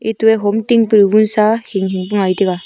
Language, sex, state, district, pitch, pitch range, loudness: Wancho, female, Arunachal Pradesh, Longding, 210 Hz, 195-220 Hz, -13 LUFS